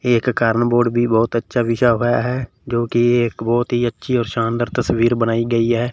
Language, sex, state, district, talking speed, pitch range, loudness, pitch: Hindi, male, Punjab, Fazilka, 210 wpm, 115-120 Hz, -18 LUFS, 120 Hz